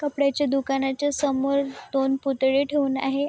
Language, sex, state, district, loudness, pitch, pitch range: Marathi, female, Maharashtra, Chandrapur, -24 LUFS, 275 Hz, 270-285 Hz